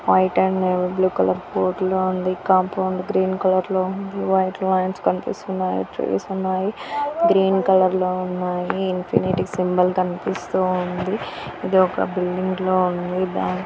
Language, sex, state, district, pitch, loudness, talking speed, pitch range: Telugu, female, Andhra Pradesh, Srikakulam, 185 Hz, -21 LUFS, 125 wpm, 180-190 Hz